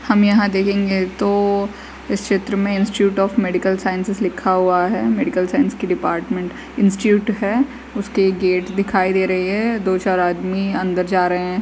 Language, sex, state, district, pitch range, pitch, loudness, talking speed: Hindi, female, Uttar Pradesh, Varanasi, 185-205 Hz, 195 Hz, -18 LUFS, 170 wpm